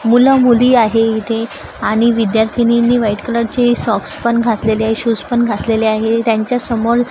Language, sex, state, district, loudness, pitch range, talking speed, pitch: Marathi, female, Maharashtra, Gondia, -14 LUFS, 220-240 Hz, 145 wpm, 230 Hz